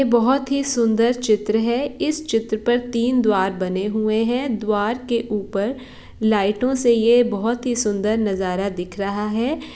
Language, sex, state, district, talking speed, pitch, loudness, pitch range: Hindi, female, Bihar, Saran, 165 wpm, 225 Hz, -20 LUFS, 210-245 Hz